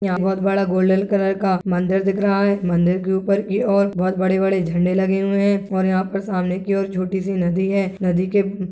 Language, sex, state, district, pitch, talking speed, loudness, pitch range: Hindi, male, Chhattisgarh, Balrampur, 190 Hz, 225 wpm, -19 LUFS, 185-195 Hz